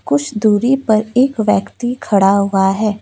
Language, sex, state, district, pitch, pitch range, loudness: Hindi, female, West Bengal, Alipurduar, 215 Hz, 195-230 Hz, -14 LUFS